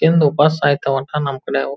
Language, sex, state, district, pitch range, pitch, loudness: Kannada, female, Karnataka, Belgaum, 135-150 Hz, 145 Hz, -17 LUFS